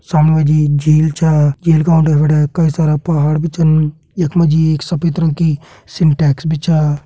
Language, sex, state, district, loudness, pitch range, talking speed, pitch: Hindi, male, Uttarakhand, Tehri Garhwal, -13 LUFS, 150-165 Hz, 195 wpm, 155 Hz